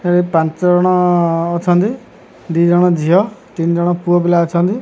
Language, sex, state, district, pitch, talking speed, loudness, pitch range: Odia, male, Odisha, Khordha, 175 Hz, 135 wpm, -14 LUFS, 170-180 Hz